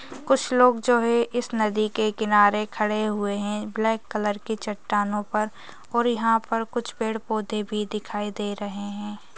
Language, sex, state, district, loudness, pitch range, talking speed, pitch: Hindi, female, Chhattisgarh, Jashpur, -24 LUFS, 210-225 Hz, 165 wpm, 215 Hz